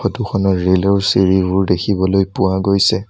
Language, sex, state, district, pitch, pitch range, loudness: Assamese, male, Assam, Sonitpur, 95 Hz, 95-100 Hz, -15 LUFS